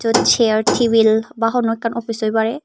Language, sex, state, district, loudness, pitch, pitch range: Chakma, female, Tripura, Dhalai, -16 LUFS, 225 Hz, 220-235 Hz